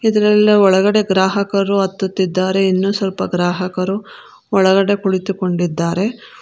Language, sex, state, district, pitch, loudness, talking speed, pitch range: Kannada, female, Karnataka, Bangalore, 195 Hz, -16 LUFS, 85 wpm, 185-200 Hz